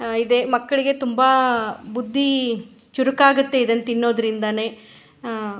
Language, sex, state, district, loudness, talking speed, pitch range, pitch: Kannada, female, Karnataka, Shimoga, -20 LUFS, 105 wpm, 225-260 Hz, 240 Hz